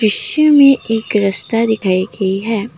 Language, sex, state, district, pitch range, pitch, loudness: Hindi, female, Assam, Kamrup Metropolitan, 200-245 Hz, 220 Hz, -13 LUFS